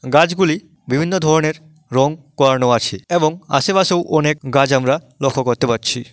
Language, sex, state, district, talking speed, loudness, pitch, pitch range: Bengali, male, West Bengal, Dakshin Dinajpur, 135 wpm, -17 LUFS, 145 Hz, 130-160 Hz